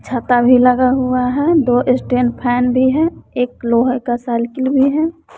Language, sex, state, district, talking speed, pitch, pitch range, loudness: Hindi, female, Bihar, West Champaran, 180 wpm, 250 Hz, 245-265 Hz, -15 LUFS